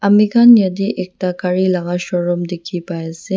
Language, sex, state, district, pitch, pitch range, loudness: Nagamese, female, Nagaland, Dimapur, 180 Hz, 175-195 Hz, -15 LUFS